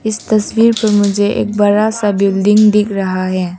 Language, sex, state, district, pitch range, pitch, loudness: Hindi, female, Arunachal Pradesh, Papum Pare, 200-215 Hz, 205 Hz, -13 LUFS